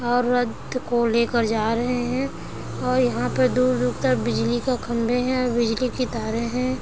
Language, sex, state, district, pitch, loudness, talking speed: Hindi, female, Bihar, Sitamarhi, 235 Hz, -23 LUFS, 185 wpm